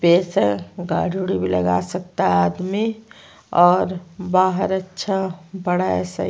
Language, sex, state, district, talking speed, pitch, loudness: Hindi, female, Chhattisgarh, Sukma, 145 wpm, 180 Hz, -20 LUFS